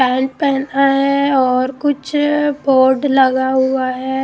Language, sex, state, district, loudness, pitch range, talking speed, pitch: Hindi, female, Odisha, Malkangiri, -15 LUFS, 260-280 Hz, 125 wpm, 270 Hz